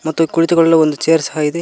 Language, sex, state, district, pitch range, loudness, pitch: Kannada, male, Karnataka, Koppal, 155-165 Hz, -14 LUFS, 160 Hz